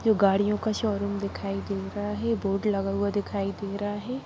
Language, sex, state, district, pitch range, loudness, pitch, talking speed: Hindi, female, Jharkhand, Sahebganj, 195-210 Hz, -28 LUFS, 200 Hz, 225 wpm